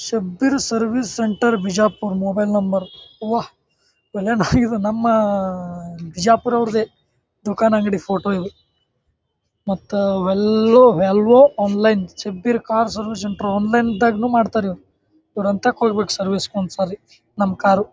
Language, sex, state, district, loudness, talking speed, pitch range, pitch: Kannada, male, Karnataka, Bijapur, -18 LUFS, 115 wpm, 195-230 Hz, 210 Hz